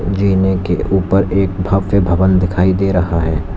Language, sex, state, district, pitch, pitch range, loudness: Hindi, male, Uttar Pradesh, Lalitpur, 95 Hz, 90-95 Hz, -14 LUFS